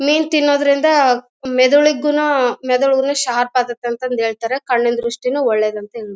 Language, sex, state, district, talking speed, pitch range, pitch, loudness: Kannada, female, Karnataka, Bellary, 105 wpm, 240-285 Hz, 255 Hz, -16 LUFS